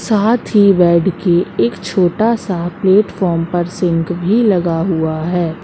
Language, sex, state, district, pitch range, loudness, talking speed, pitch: Hindi, female, Madhya Pradesh, Katni, 170-200 Hz, -14 LUFS, 150 wpm, 180 Hz